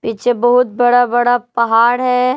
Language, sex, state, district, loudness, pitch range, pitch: Hindi, female, Jharkhand, Palamu, -13 LUFS, 240-245 Hz, 245 Hz